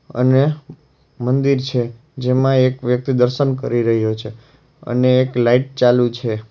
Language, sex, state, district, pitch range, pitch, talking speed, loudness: Gujarati, male, Gujarat, Valsad, 120-135 Hz, 125 Hz, 140 wpm, -17 LUFS